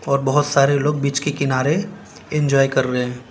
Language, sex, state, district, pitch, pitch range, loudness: Hindi, male, Gujarat, Valsad, 140 Hz, 135-150 Hz, -19 LUFS